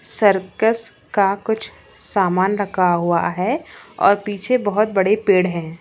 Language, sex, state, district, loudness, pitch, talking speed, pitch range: Hindi, female, Bihar, Samastipur, -19 LUFS, 200 Hz, 145 wpm, 185-215 Hz